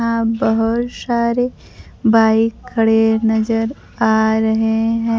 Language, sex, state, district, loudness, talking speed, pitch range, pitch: Hindi, female, Bihar, Kaimur, -16 LUFS, 105 wpm, 220-230 Hz, 225 Hz